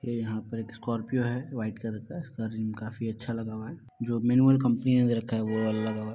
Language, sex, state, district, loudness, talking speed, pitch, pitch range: Hindi, male, Bihar, Muzaffarpur, -29 LUFS, 285 wpm, 115 Hz, 110-120 Hz